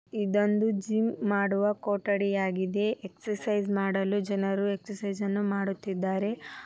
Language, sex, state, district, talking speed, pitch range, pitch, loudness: Kannada, male, Karnataka, Dharwad, 80 wpm, 195-210 Hz, 200 Hz, -29 LUFS